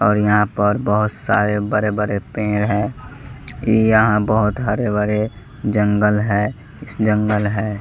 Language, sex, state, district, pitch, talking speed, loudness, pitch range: Hindi, male, Bihar, West Champaran, 105 Hz, 140 wpm, -18 LUFS, 105-110 Hz